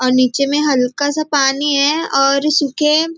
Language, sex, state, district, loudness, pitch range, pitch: Hindi, female, Maharashtra, Nagpur, -15 LUFS, 275-300 Hz, 285 Hz